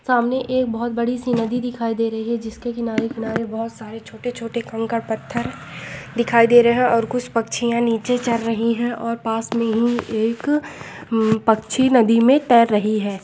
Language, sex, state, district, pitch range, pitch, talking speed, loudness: Hindi, female, Andhra Pradesh, Anantapur, 225-240 Hz, 230 Hz, 190 wpm, -20 LUFS